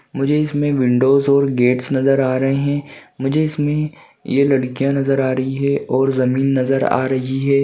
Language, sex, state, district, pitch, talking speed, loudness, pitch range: Hindi, male, Uttarakhand, Uttarkashi, 135 Hz, 180 wpm, -17 LUFS, 130-140 Hz